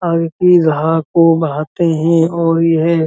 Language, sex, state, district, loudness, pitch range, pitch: Hindi, male, Uttar Pradesh, Muzaffarnagar, -13 LUFS, 160-170 Hz, 165 Hz